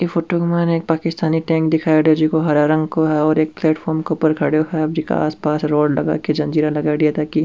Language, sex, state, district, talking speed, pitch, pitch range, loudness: Rajasthani, male, Rajasthan, Churu, 240 wpm, 155 Hz, 155-160 Hz, -17 LUFS